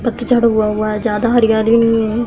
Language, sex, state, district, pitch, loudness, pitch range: Hindi, female, Uttar Pradesh, Hamirpur, 230 Hz, -14 LUFS, 215-235 Hz